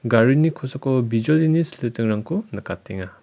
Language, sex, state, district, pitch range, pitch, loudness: Garo, male, Meghalaya, West Garo Hills, 110-155 Hz, 125 Hz, -21 LUFS